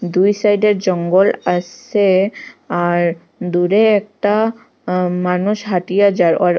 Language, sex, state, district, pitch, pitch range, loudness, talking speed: Bengali, female, Assam, Hailakandi, 190 Hz, 180-210 Hz, -16 LUFS, 110 wpm